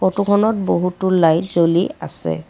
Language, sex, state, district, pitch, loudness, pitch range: Assamese, female, Assam, Kamrup Metropolitan, 180 Hz, -17 LUFS, 165-195 Hz